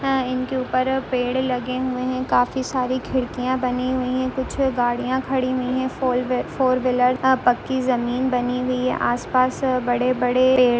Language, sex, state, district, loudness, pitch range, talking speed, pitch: Hindi, female, Uttarakhand, Tehri Garhwal, -21 LUFS, 250-260 Hz, 185 wpm, 255 Hz